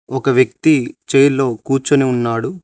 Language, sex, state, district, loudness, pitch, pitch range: Telugu, male, Telangana, Mahabubabad, -15 LUFS, 135 Hz, 125-140 Hz